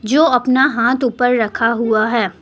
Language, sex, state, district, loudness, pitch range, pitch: Hindi, female, Jharkhand, Deoghar, -15 LUFS, 230-255 Hz, 240 Hz